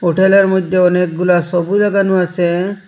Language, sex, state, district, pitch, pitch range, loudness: Bengali, male, Assam, Hailakandi, 180 Hz, 180-195 Hz, -13 LUFS